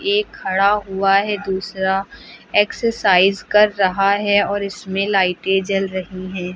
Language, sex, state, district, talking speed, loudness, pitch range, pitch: Hindi, female, Uttar Pradesh, Lucknow, 135 wpm, -18 LUFS, 190-205 Hz, 195 Hz